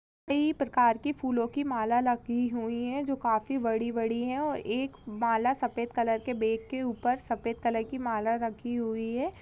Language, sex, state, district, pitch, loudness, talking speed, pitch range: Hindi, female, Maharashtra, Sindhudurg, 240 Hz, -30 LUFS, 165 wpm, 230-260 Hz